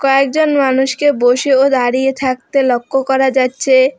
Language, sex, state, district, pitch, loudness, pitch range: Bengali, female, West Bengal, Alipurduar, 265 Hz, -13 LUFS, 260-275 Hz